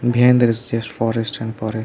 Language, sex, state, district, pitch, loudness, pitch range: English, male, Karnataka, Bangalore, 115 Hz, -18 LUFS, 110-120 Hz